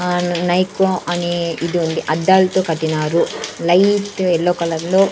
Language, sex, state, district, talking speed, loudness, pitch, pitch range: Telugu, female, Andhra Pradesh, Sri Satya Sai, 130 wpm, -17 LUFS, 175 Hz, 170-185 Hz